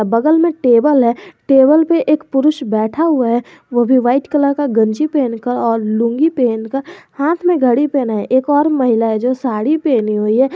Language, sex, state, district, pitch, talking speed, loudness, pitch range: Hindi, male, Jharkhand, Garhwa, 260 Hz, 195 wpm, -14 LUFS, 235-295 Hz